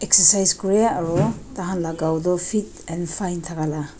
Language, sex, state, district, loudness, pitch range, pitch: Nagamese, female, Nagaland, Dimapur, -20 LUFS, 165-195 Hz, 180 Hz